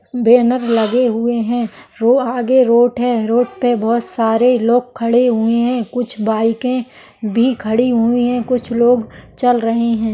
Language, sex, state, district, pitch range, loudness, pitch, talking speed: Hindi, female, Maharashtra, Solapur, 230-245 Hz, -15 LUFS, 240 Hz, 160 wpm